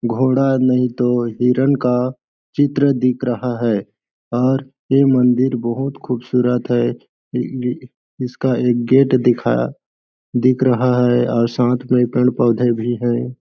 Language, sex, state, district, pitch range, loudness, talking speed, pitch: Hindi, male, Chhattisgarh, Balrampur, 120-130 Hz, -17 LUFS, 130 wpm, 125 Hz